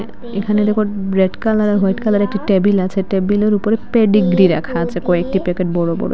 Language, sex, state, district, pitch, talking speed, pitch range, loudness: Bengali, female, Assam, Hailakandi, 200 Hz, 175 wpm, 185-210 Hz, -16 LUFS